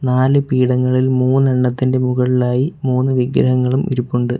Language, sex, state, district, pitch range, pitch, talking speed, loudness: Malayalam, male, Kerala, Kollam, 125-130 Hz, 130 Hz, 95 wpm, -16 LUFS